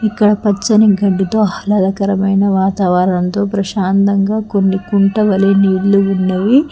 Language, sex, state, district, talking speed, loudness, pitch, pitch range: Telugu, female, Telangana, Hyderabad, 100 wpm, -13 LUFS, 200 Hz, 195-205 Hz